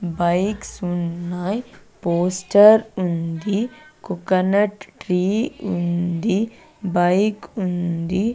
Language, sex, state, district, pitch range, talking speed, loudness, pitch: Telugu, female, Andhra Pradesh, Sri Satya Sai, 175-210 Hz, 65 wpm, -20 LUFS, 185 Hz